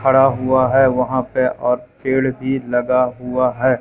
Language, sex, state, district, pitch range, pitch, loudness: Hindi, male, Madhya Pradesh, Katni, 125-130 Hz, 130 Hz, -17 LUFS